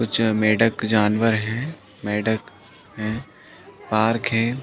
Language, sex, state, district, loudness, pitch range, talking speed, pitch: Hindi, male, Chhattisgarh, Bastar, -21 LUFS, 110-115 Hz, 105 wpm, 110 Hz